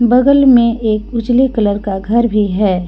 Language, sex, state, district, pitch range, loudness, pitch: Hindi, female, Jharkhand, Garhwa, 205-245 Hz, -12 LUFS, 230 Hz